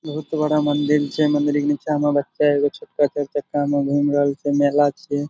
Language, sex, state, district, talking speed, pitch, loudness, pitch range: Maithili, male, Bihar, Supaul, 215 wpm, 145 Hz, -20 LUFS, 145-150 Hz